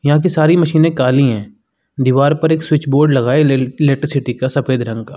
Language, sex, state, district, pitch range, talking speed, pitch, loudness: Hindi, male, Uttar Pradesh, Muzaffarnagar, 130-155 Hz, 220 wpm, 140 Hz, -14 LUFS